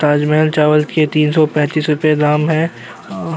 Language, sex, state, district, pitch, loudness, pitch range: Hindi, male, Uttar Pradesh, Jyotiba Phule Nagar, 150 Hz, -14 LUFS, 150-155 Hz